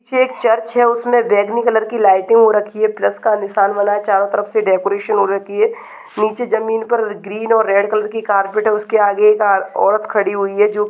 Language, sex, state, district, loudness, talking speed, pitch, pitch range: Hindi, female, Chhattisgarh, Balrampur, -15 LUFS, 185 wpm, 215 Hz, 200-225 Hz